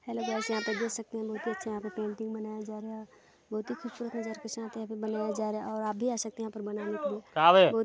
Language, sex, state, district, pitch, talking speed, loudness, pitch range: Hindi, female, Chhattisgarh, Balrampur, 220 Hz, 300 wpm, -32 LUFS, 215-225 Hz